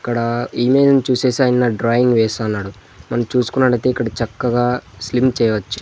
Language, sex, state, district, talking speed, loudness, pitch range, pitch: Telugu, male, Andhra Pradesh, Sri Satya Sai, 115 wpm, -17 LUFS, 115-125 Hz, 120 Hz